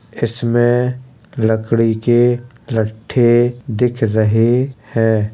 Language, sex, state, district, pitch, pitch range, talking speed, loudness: Hindi, male, Uttar Pradesh, Jalaun, 120 Hz, 110-125 Hz, 80 wpm, -16 LUFS